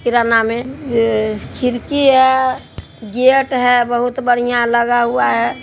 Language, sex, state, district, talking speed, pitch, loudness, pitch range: Hindi, male, Bihar, Araria, 140 wpm, 245 Hz, -15 LUFS, 235-260 Hz